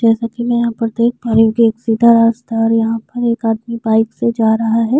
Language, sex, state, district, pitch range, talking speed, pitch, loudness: Hindi, female, Uttar Pradesh, Jyotiba Phule Nagar, 225-235 Hz, 285 wpm, 230 Hz, -14 LUFS